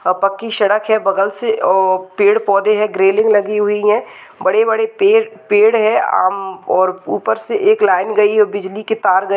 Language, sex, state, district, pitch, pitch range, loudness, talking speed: Hindi, female, Maharashtra, Chandrapur, 210 Hz, 195-220 Hz, -14 LUFS, 210 wpm